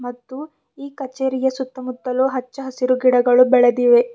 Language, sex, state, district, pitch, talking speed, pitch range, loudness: Kannada, female, Karnataka, Bidar, 255 Hz, 115 wpm, 250-265 Hz, -17 LUFS